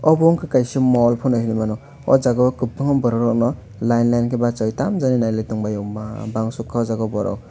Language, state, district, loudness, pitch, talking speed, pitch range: Kokborok, Tripura, West Tripura, -19 LUFS, 120 Hz, 175 wpm, 110-130 Hz